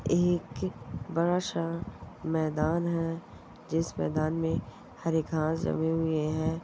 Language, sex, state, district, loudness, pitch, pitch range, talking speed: Hindi, female, Andhra Pradesh, Chittoor, -30 LUFS, 165 Hz, 155-170 Hz, 120 wpm